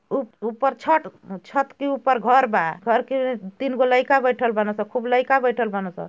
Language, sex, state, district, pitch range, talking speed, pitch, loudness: Bhojpuri, female, Uttar Pradesh, Ghazipur, 225-270 Hz, 195 wpm, 250 Hz, -21 LUFS